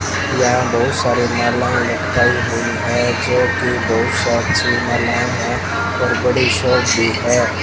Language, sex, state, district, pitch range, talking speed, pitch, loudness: Hindi, male, Rajasthan, Bikaner, 115-125 Hz, 80 wpm, 120 Hz, -16 LUFS